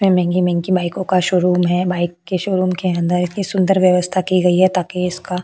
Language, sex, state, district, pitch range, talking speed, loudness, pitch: Hindi, female, Maharashtra, Chandrapur, 180-185 Hz, 230 wpm, -17 LUFS, 180 Hz